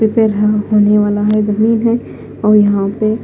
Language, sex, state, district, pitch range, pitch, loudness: Hindi, female, Punjab, Fazilka, 210-220 Hz, 210 Hz, -13 LUFS